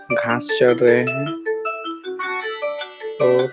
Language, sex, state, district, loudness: Hindi, male, Chhattisgarh, Raigarh, -20 LUFS